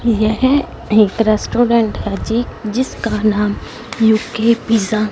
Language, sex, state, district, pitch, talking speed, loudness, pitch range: Hindi, female, Punjab, Fazilka, 225 Hz, 115 wpm, -16 LUFS, 215-235 Hz